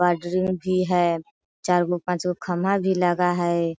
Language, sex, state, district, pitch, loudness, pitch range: Hindi, female, Bihar, Sitamarhi, 180 Hz, -23 LUFS, 175-185 Hz